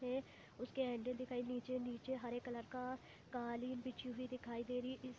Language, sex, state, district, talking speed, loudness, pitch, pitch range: Hindi, female, Chhattisgarh, Bilaspur, 175 wpm, -46 LUFS, 250 Hz, 245-255 Hz